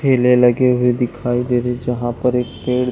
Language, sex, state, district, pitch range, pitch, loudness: Hindi, male, Chhattisgarh, Bilaspur, 120-125 Hz, 125 Hz, -17 LUFS